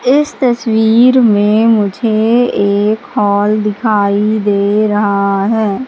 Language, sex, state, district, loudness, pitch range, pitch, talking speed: Hindi, female, Madhya Pradesh, Katni, -12 LUFS, 205-230 Hz, 215 Hz, 100 wpm